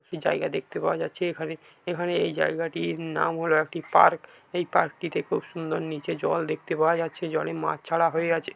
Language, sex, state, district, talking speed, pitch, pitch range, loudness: Bengali, male, West Bengal, Dakshin Dinajpur, 205 wpm, 165 Hz, 160-170 Hz, -26 LUFS